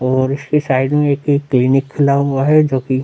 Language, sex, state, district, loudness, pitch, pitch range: Hindi, male, Bihar, Vaishali, -15 LUFS, 140 Hz, 130-145 Hz